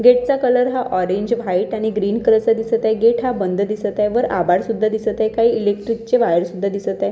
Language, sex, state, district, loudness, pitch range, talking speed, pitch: Marathi, female, Maharashtra, Washim, -18 LUFS, 205-235 Hz, 245 wpm, 220 Hz